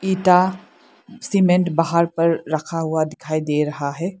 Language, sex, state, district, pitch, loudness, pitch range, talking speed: Hindi, female, Arunachal Pradesh, Lower Dibang Valley, 170 Hz, -19 LUFS, 155-185 Hz, 145 wpm